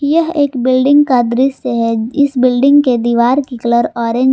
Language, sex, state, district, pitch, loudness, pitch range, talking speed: Hindi, female, Jharkhand, Palamu, 255 Hz, -12 LUFS, 235-280 Hz, 195 wpm